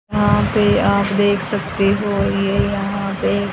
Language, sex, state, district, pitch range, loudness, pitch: Hindi, female, Haryana, Rohtak, 195-200 Hz, -17 LUFS, 200 Hz